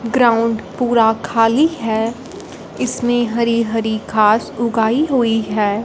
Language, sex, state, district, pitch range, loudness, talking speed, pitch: Hindi, female, Punjab, Fazilka, 220-240 Hz, -16 LUFS, 115 wpm, 230 Hz